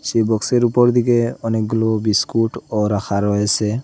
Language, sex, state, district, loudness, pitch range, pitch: Bengali, male, Assam, Hailakandi, -18 LUFS, 105-120 Hz, 110 Hz